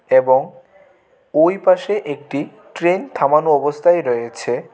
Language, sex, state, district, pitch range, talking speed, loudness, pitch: Bengali, male, Tripura, West Tripura, 145-195 Hz, 100 wpm, -17 LUFS, 170 Hz